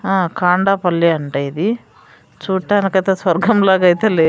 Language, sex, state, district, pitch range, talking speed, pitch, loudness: Telugu, female, Andhra Pradesh, Sri Satya Sai, 170-195 Hz, 125 wpm, 190 Hz, -15 LUFS